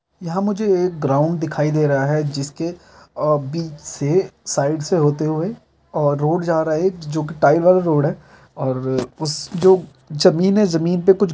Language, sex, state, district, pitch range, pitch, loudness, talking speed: Hindi, male, Jharkhand, Jamtara, 150-180 Hz, 155 Hz, -19 LUFS, 225 wpm